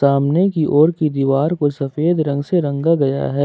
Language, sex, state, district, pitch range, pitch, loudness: Hindi, male, Jharkhand, Ranchi, 140-160 Hz, 145 Hz, -17 LUFS